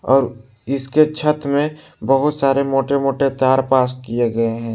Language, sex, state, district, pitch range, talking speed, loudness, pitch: Hindi, male, Jharkhand, Ranchi, 125-140 Hz, 165 wpm, -18 LUFS, 135 Hz